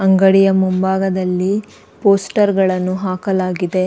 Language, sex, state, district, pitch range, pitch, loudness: Kannada, female, Karnataka, Dakshina Kannada, 185-195 Hz, 190 Hz, -16 LUFS